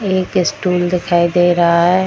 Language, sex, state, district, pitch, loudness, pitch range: Hindi, female, Bihar, Darbhanga, 180 Hz, -14 LUFS, 175-185 Hz